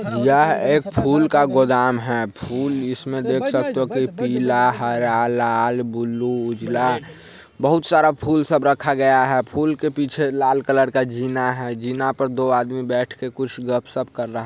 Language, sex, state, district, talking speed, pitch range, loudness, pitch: Hindi, male, Bihar, Sitamarhi, 185 wpm, 125-135 Hz, -20 LUFS, 130 Hz